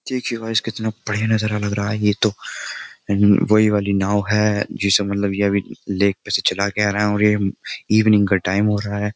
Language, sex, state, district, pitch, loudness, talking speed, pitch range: Hindi, male, Uttar Pradesh, Jyotiba Phule Nagar, 105 Hz, -19 LUFS, 225 wpm, 100-110 Hz